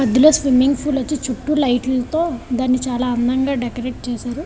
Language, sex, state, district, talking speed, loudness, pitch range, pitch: Telugu, female, Andhra Pradesh, Visakhapatnam, 175 wpm, -18 LUFS, 250-280 Hz, 255 Hz